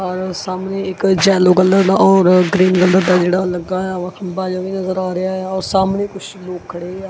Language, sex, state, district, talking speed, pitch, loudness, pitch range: Punjabi, female, Punjab, Kapurthala, 210 wpm, 185 Hz, -15 LUFS, 180-190 Hz